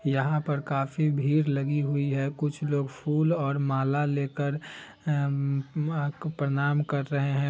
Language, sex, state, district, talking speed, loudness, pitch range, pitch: Hindi, male, Bihar, Vaishali, 160 wpm, -28 LUFS, 140-150 Hz, 145 Hz